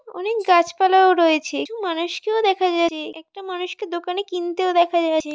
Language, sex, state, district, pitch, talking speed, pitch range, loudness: Bengali, female, West Bengal, North 24 Parganas, 360 Hz, 145 wpm, 340-380 Hz, -20 LUFS